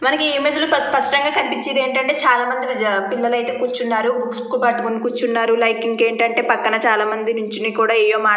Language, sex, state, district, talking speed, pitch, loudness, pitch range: Telugu, female, Andhra Pradesh, Chittoor, 170 wpm, 240 Hz, -17 LUFS, 225-260 Hz